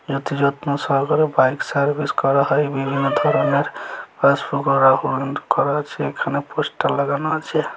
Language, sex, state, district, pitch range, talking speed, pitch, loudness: Bengali, male, West Bengal, Dakshin Dinajpur, 135-150 Hz, 115 wpm, 140 Hz, -19 LUFS